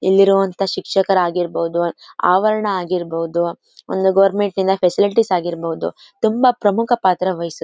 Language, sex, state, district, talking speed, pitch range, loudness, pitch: Kannada, female, Karnataka, Mysore, 120 wpm, 170-200 Hz, -17 LUFS, 190 Hz